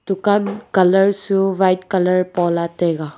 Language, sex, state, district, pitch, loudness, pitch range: Wancho, female, Arunachal Pradesh, Longding, 185 Hz, -17 LUFS, 175-195 Hz